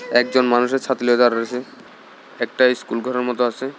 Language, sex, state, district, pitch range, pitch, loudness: Bengali, male, Tripura, South Tripura, 120-130 Hz, 125 Hz, -19 LUFS